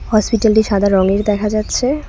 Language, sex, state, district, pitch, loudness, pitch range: Bengali, female, West Bengal, Cooch Behar, 215 Hz, -15 LUFS, 200-220 Hz